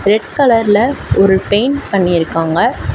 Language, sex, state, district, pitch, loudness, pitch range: Tamil, female, Tamil Nadu, Chennai, 205 Hz, -13 LUFS, 170-225 Hz